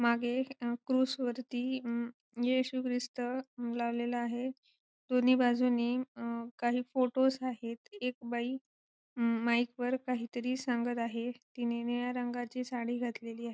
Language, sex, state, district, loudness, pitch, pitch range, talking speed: Marathi, female, Maharashtra, Sindhudurg, -34 LUFS, 245 Hz, 235-255 Hz, 135 wpm